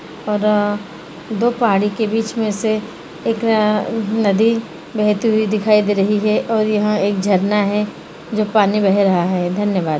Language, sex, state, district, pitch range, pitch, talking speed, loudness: Hindi, female, Uttarakhand, Uttarkashi, 200-220 Hz, 210 Hz, 155 wpm, -17 LUFS